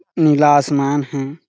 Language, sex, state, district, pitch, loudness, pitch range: Hindi, male, Chhattisgarh, Sarguja, 145 Hz, -15 LUFS, 140-150 Hz